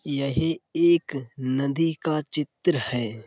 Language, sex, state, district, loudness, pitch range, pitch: Hindi, male, Uttar Pradesh, Budaun, -25 LUFS, 130-165 Hz, 145 Hz